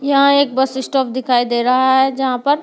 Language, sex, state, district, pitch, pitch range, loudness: Hindi, female, Delhi, New Delhi, 265 Hz, 255-275 Hz, -15 LUFS